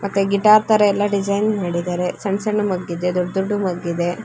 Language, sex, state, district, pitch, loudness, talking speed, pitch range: Kannada, female, Karnataka, Chamarajanagar, 195 Hz, -19 LUFS, 200 wpm, 180-205 Hz